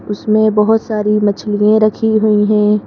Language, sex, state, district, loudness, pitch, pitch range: Hindi, female, Madhya Pradesh, Bhopal, -13 LUFS, 210 Hz, 210-215 Hz